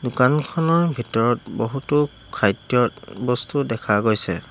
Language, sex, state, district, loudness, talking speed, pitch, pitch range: Assamese, male, Assam, Hailakandi, -21 LUFS, 80 wpm, 125 Hz, 115-140 Hz